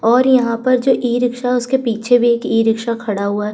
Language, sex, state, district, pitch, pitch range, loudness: Hindi, female, Uttar Pradesh, Budaun, 240 Hz, 225-250 Hz, -16 LUFS